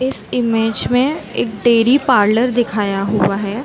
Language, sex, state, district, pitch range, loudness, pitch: Hindi, female, Chhattisgarh, Bilaspur, 210-250 Hz, -15 LUFS, 225 Hz